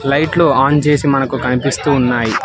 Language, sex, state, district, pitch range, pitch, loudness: Telugu, male, Telangana, Hyderabad, 130-145 Hz, 135 Hz, -14 LUFS